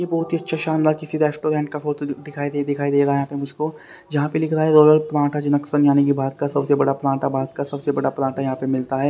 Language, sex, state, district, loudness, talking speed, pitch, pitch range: Hindi, male, Haryana, Rohtak, -20 LUFS, 270 wpm, 145 Hz, 140-155 Hz